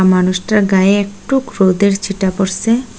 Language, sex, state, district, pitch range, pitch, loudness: Bengali, female, Assam, Hailakandi, 190-210 Hz, 195 Hz, -14 LUFS